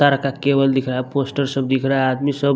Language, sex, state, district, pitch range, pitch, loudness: Hindi, male, Bihar, West Champaran, 135-140 Hz, 135 Hz, -19 LUFS